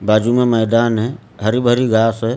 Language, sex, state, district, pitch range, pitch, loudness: Hindi, male, Maharashtra, Gondia, 110-120 Hz, 115 Hz, -15 LUFS